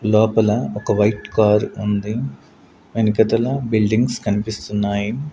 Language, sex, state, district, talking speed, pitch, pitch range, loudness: Telugu, male, Andhra Pradesh, Sri Satya Sai, 90 wpm, 105 Hz, 100-110 Hz, -19 LUFS